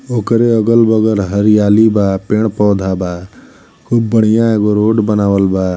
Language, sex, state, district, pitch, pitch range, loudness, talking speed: Bhojpuri, male, Uttar Pradesh, Ghazipur, 105 Hz, 100-110 Hz, -12 LUFS, 125 wpm